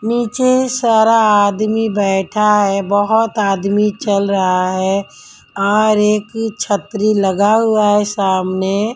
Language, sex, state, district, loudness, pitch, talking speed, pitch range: Hindi, female, Delhi, New Delhi, -14 LUFS, 205 Hz, 105 wpm, 195-220 Hz